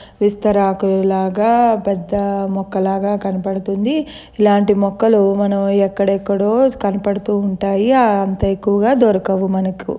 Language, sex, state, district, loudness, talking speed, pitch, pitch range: Telugu, female, Andhra Pradesh, Krishna, -16 LUFS, 90 wpm, 200 Hz, 195-210 Hz